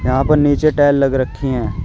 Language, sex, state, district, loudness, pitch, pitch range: Hindi, male, Uttar Pradesh, Shamli, -15 LUFS, 135 Hz, 130-145 Hz